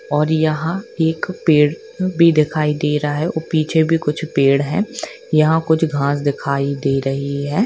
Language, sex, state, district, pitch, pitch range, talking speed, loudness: Hindi, female, Jharkhand, Jamtara, 155 Hz, 145-165 Hz, 170 wpm, -17 LUFS